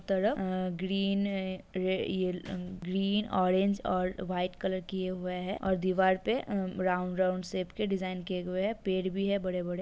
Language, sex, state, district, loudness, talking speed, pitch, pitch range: Hindi, female, Uttar Pradesh, Jalaun, -32 LUFS, 170 wpm, 185 Hz, 185-195 Hz